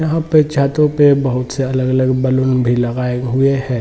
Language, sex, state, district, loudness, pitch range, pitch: Hindi, male, Jharkhand, Jamtara, -15 LUFS, 125-140 Hz, 130 Hz